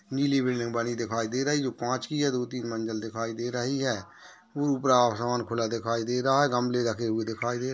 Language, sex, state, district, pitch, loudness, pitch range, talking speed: Hindi, male, Maharashtra, Nagpur, 120 Hz, -28 LUFS, 115-130 Hz, 230 wpm